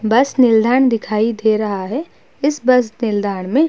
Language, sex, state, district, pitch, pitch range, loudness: Hindi, female, Uttar Pradesh, Budaun, 230 Hz, 215-260 Hz, -16 LUFS